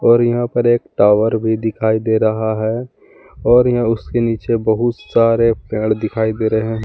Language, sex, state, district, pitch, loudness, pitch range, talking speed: Hindi, male, Jharkhand, Palamu, 110 Hz, -16 LUFS, 110-120 Hz, 175 wpm